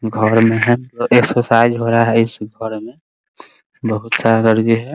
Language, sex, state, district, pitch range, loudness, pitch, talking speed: Hindi, male, Bihar, Muzaffarpur, 110-120 Hz, -15 LUFS, 115 Hz, 195 wpm